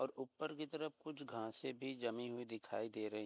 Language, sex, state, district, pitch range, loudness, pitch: Hindi, male, Bihar, Begusarai, 115-150 Hz, -46 LUFS, 130 Hz